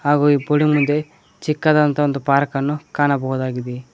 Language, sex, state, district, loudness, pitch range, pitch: Kannada, male, Karnataka, Koppal, -18 LUFS, 140-150 Hz, 145 Hz